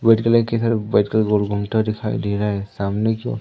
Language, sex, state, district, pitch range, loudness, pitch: Hindi, male, Madhya Pradesh, Umaria, 100-115 Hz, -20 LUFS, 110 Hz